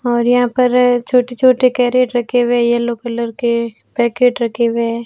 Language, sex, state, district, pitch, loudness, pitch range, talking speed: Hindi, female, Rajasthan, Barmer, 240 Hz, -15 LUFS, 235-250 Hz, 180 wpm